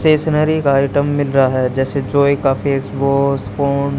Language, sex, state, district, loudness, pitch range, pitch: Hindi, male, Haryana, Charkhi Dadri, -16 LUFS, 135-145 Hz, 140 Hz